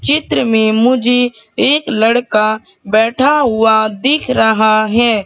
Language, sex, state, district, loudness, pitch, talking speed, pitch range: Hindi, female, Madhya Pradesh, Katni, -12 LUFS, 225 Hz, 115 wpm, 220-255 Hz